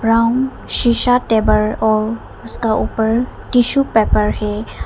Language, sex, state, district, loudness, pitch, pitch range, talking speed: Hindi, female, Arunachal Pradesh, Papum Pare, -16 LUFS, 225 Hz, 220-245 Hz, 110 wpm